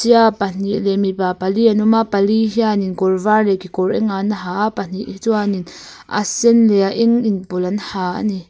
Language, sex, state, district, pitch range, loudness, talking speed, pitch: Mizo, female, Mizoram, Aizawl, 190-220 Hz, -17 LUFS, 220 wpm, 200 Hz